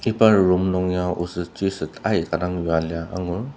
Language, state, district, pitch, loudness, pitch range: Ao, Nagaland, Dimapur, 90 Hz, -22 LUFS, 85-95 Hz